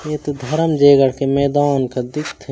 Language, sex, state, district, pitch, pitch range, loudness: Chhattisgarhi, male, Chhattisgarh, Raigarh, 140 Hz, 135-150 Hz, -16 LUFS